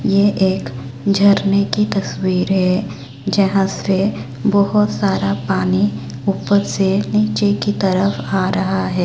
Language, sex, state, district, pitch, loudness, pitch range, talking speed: Hindi, male, Chhattisgarh, Raipur, 190 Hz, -17 LUFS, 180-200 Hz, 125 wpm